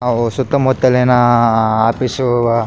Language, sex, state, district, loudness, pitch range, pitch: Kannada, male, Karnataka, Raichur, -13 LUFS, 115-130 Hz, 120 Hz